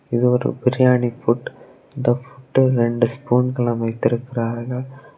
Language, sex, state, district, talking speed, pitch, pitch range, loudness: Tamil, male, Tamil Nadu, Kanyakumari, 105 wpm, 125 Hz, 120-130 Hz, -20 LUFS